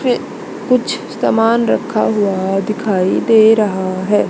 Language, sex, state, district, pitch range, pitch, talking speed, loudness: Hindi, male, Haryana, Charkhi Dadri, 195-225 Hz, 215 Hz, 110 wpm, -14 LUFS